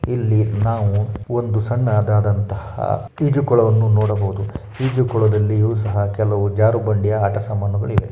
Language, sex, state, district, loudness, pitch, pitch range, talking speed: Kannada, male, Karnataka, Shimoga, -18 LUFS, 110 Hz, 105-115 Hz, 120 wpm